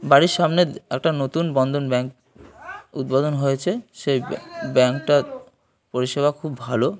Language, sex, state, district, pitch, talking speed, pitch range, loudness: Bengali, male, West Bengal, North 24 Parganas, 140 Hz, 135 wpm, 130-165 Hz, -21 LUFS